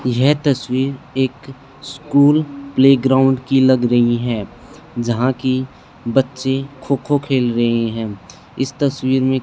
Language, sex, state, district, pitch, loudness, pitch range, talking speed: Hindi, male, Haryana, Charkhi Dadri, 130 Hz, -17 LUFS, 120-135 Hz, 125 wpm